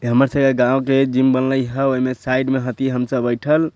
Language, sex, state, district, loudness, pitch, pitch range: Bhojpuri, male, Bihar, Sitamarhi, -18 LUFS, 130 Hz, 125-135 Hz